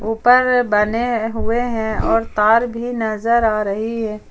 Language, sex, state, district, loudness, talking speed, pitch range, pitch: Hindi, female, Jharkhand, Ranchi, -17 LUFS, 155 wpm, 220-235 Hz, 225 Hz